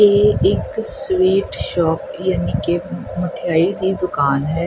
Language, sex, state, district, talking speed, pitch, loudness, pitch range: Punjabi, female, Punjab, Kapurthala, 130 wpm, 180 Hz, -18 LUFS, 165-190 Hz